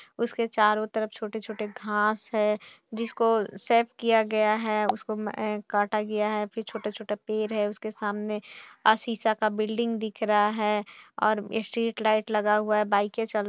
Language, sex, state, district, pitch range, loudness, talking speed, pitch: Hindi, female, Bihar, Purnia, 210-225 Hz, -27 LUFS, 165 wpm, 215 Hz